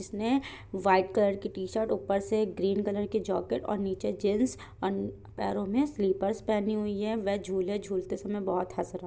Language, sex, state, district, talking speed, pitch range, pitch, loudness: Hindi, female, Bihar, Jahanabad, 190 wpm, 190-210 Hz, 200 Hz, -30 LUFS